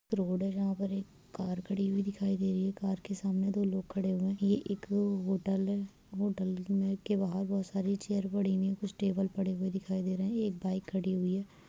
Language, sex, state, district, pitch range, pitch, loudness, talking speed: Hindi, female, Jharkhand, Jamtara, 190-200 Hz, 195 Hz, -33 LUFS, 240 wpm